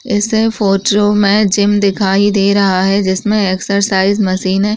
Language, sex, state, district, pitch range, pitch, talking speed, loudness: Hindi, female, Bihar, Begusarai, 195-205 Hz, 200 Hz, 150 wpm, -12 LUFS